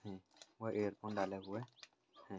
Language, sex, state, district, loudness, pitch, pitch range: Hindi, male, Uttar Pradesh, Etah, -43 LUFS, 105 Hz, 95-110 Hz